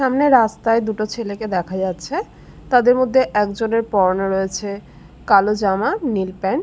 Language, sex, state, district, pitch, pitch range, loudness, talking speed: Bengali, female, West Bengal, Jalpaiguri, 215 Hz, 195-250 Hz, -18 LUFS, 145 wpm